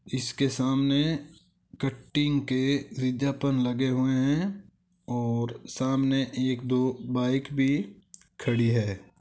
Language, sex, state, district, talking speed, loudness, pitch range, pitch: Hindi, male, Rajasthan, Nagaur, 105 wpm, -27 LUFS, 125-140 Hz, 130 Hz